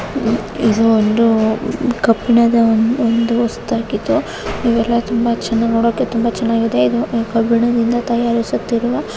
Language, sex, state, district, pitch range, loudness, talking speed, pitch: Kannada, female, Karnataka, Raichur, 225-235 Hz, -16 LUFS, 100 wpm, 230 Hz